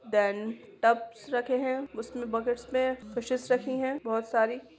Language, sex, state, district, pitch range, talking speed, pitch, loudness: Hindi, female, Jharkhand, Sahebganj, 225-255 Hz, 165 wpm, 240 Hz, -30 LUFS